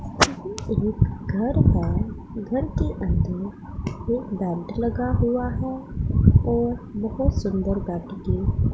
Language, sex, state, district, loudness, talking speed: Hindi, female, Punjab, Pathankot, -24 LUFS, 115 wpm